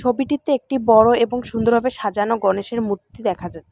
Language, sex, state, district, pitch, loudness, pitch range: Bengali, female, West Bengal, Alipurduar, 230 Hz, -19 LUFS, 205-250 Hz